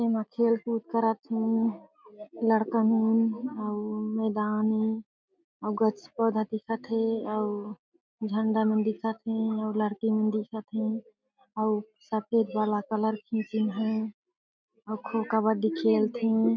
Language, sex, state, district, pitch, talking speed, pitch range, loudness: Chhattisgarhi, female, Chhattisgarh, Jashpur, 220 Hz, 130 wpm, 215-225 Hz, -28 LUFS